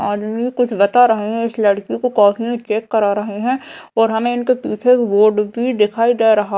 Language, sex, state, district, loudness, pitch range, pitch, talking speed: Hindi, female, Madhya Pradesh, Dhar, -16 LUFS, 210-245 Hz, 225 Hz, 190 wpm